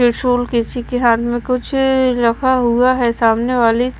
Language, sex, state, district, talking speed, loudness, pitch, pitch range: Hindi, female, Maharashtra, Washim, 180 wpm, -15 LUFS, 245 Hz, 235-255 Hz